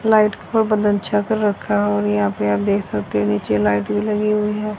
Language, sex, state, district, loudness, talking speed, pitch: Hindi, female, Haryana, Rohtak, -19 LUFS, 250 wpm, 200 Hz